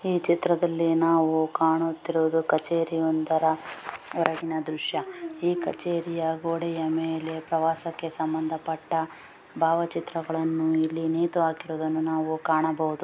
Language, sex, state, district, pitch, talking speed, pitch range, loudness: Kannada, female, Karnataka, Mysore, 160 Hz, 95 wpm, 160-165 Hz, -26 LUFS